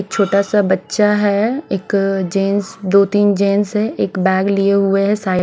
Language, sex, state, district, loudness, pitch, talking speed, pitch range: Hindi, female, Odisha, Nuapada, -15 LUFS, 200 Hz, 165 wpm, 195-205 Hz